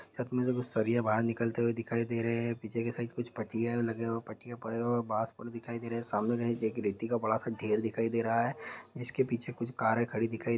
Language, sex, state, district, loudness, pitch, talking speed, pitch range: Hindi, male, Uttar Pradesh, Hamirpur, -33 LUFS, 115 Hz, 305 wpm, 115-120 Hz